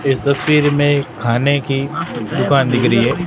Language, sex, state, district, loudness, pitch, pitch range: Hindi, male, Rajasthan, Barmer, -16 LUFS, 140 Hz, 125-145 Hz